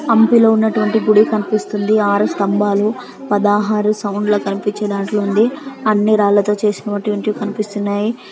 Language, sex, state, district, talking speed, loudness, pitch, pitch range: Telugu, female, Andhra Pradesh, Anantapur, 135 wpm, -16 LUFS, 210 Hz, 205-215 Hz